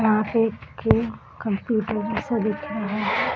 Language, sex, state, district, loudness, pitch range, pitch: Hindi, female, Bihar, Darbhanga, -24 LUFS, 215-225 Hz, 220 Hz